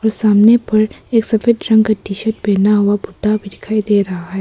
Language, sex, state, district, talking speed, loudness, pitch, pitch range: Hindi, female, Arunachal Pradesh, Papum Pare, 230 wpm, -14 LUFS, 215 Hz, 205-220 Hz